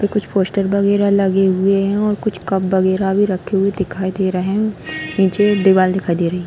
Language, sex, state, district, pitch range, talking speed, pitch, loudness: Hindi, female, Bihar, Darbhanga, 185-200 Hz, 230 wpm, 195 Hz, -16 LUFS